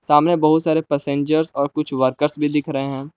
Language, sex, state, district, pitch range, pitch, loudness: Hindi, male, Jharkhand, Palamu, 140-155 Hz, 150 Hz, -19 LUFS